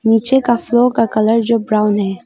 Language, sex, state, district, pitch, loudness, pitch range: Hindi, female, Arunachal Pradesh, Longding, 225 Hz, -14 LUFS, 215-240 Hz